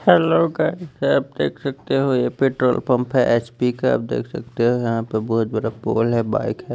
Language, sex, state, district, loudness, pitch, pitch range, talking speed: Hindi, male, Chandigarh, Chandigarh, -20 LUFS, 125 Hz, 115-135 Hz, 215 wpm